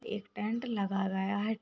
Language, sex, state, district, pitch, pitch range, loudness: Hindi, female, Uttar Pradesh, Ghazipur, 205 Hz, 195-220 Hz, -34 LUFS